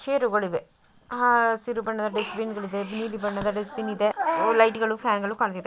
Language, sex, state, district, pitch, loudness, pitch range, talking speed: Kannada, female, Karnataka, Mysore, 220 Hz, -25 LUFS, 210-230 Hz, 115 wpm